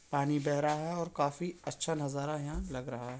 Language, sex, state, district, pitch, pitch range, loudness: Hindi, male, Uttar Pradesh, Budaun, 145 Hz, 140-160 Hz, -35 LUFS